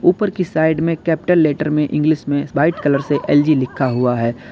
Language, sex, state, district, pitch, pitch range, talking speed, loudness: Hindi, male, Uttar Pradesh, Lalitpur, 150 Hz, 140-165 Hz, 210 wpm, -17 LUFS